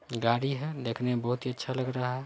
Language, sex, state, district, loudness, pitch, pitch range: Hindi, male, Bihar, Saran, -31 LUFS, 125 Hz, 120-130 Hz